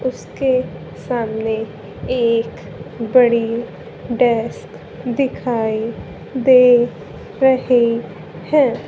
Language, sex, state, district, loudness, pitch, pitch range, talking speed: Hindi, female, Haryana, Charkhi Dadri, -17 LUFS, 240 Hz, 225-255 Hz, 60 wpm